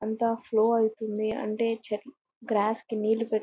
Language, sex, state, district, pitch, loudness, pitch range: Telugu, female, Andhra Pradesh, Anantapur, 220 Hz, -28 LUFS, 215-230 Hz